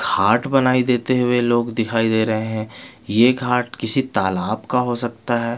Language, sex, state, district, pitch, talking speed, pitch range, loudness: Hindi, male, Bihar, Patna, 120 Hz, 185 wpm, 115-125 Hz, -19 LUFS